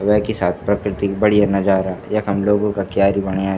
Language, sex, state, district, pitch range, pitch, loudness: Garhwali, male, Uttarakhand, Tehri Garhwal, 95-105 Hz, 100 Hz, -18 LUFS